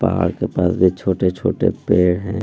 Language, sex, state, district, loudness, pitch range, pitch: Hindi, male, Bihar, Gaya, -18 LUFS, 90-95 Hz, 90 Hz